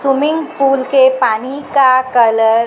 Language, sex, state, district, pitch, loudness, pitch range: Hindi, male, Maharashtra, Mumbai Suburban, 260 Hz, -12 LUFS, 250-275 Hz